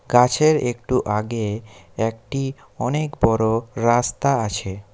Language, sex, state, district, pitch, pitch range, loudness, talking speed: Bengali, male, West Bengal, Alipurduar, 115 Hz, 110-130 Hz, -21 LUFS, 95 wpm